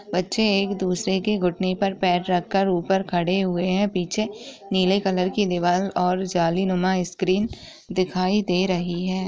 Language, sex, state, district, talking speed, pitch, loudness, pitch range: Hindi, female, Chhattisgarh, Sukma, 170 wpm, 185 Hz, -23 LUFS, 180-195 Hz